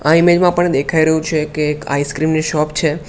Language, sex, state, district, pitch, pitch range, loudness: Gujarati, male, Gujarat, Gandhinagar, 155 Hz, 150-160 Hz, -15 LUFS